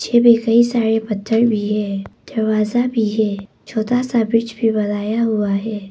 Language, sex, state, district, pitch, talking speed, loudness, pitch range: Hindi, female, Arunachal Pradesh, Papum Pare, 220 Hz, 160 wpm, -18 LUFS, 210-230 Hz